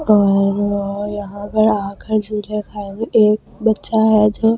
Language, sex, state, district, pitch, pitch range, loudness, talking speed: Hindi, female, Delhi, New Delhi, 210 Hz, 205-220 Hz, -17 LUFS, 120 wpm